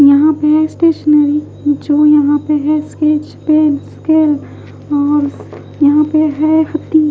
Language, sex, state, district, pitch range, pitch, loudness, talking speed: Hindi, female, Odisha, Khordha, 295-310 Hz, 300 Hz, -12 LUFS, 125 wpm